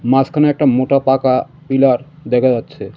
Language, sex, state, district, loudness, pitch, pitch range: Bengali, male, West Bengal, Cooch Behar, -15 LUFS, 135 Hz, 130-145 Hz